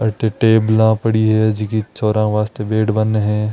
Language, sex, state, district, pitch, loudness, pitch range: Marwari, male, Rajasthan, Nagaur, 110 Hz, -16 LUFS, 105-110 Hz